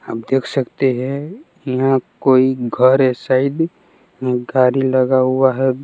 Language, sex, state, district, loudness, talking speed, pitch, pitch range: Hindi, male, Bihar, West Champaran, -16 LUFS, 135 wpm, 130 Hz, 130-135 Hz